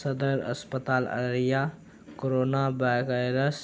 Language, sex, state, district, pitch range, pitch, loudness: Hindi, male, Bihar, Araria, 125-135 Hz, 130 Hz, -28 LUFS